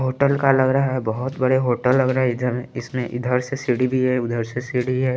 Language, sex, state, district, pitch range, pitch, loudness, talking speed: Hindi, male, Chandigarh, Chandigarh, 125-130 Hz, 130 Hz, -21 LUFS, 255 wpm